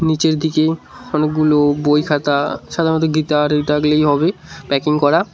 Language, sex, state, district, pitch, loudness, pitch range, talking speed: Bengali, male, West Bengal, Cooch Behar, 150 Hz, -16 LUFS, 150-160 Hz, 125 wpm